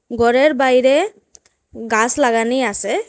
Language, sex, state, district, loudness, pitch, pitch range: Bengali, female, Assam, Hailakandi, -16 LUFS, 255 Hz, 230-285 Hz